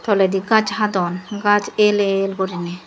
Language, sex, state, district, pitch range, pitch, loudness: Chakma, female, Tripura, Dhalai, 190-205 Hz, 195 Hz, -18 LUFS